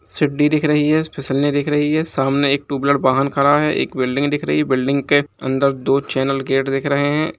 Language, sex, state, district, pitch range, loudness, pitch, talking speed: Hindi, male, Uttar Pradesh, Jalaun, 135-145 Hz, -18 LUFS, 140 Hz, 235 wpm